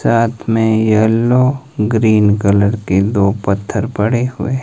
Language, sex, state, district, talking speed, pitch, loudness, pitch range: Hindi, male, Himachal Pradesh, Shimla, 130 wpm, 110 Hz, -14 LUFS, 105-115 Hz